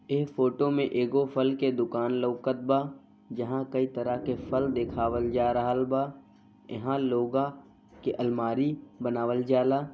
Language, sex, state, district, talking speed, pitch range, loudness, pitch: Bhojpuri, male, Bihar, Gopalganj, 155 wpm, 120-135 Hz, -28 LUFS, 130 Hz